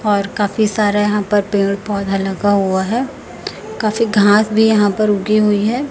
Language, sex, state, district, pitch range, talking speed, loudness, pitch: Hindi, female, Chhattisgarh, Raipur, 200-215 Hz, 185 wpm, -15 LUFS, 205 Hz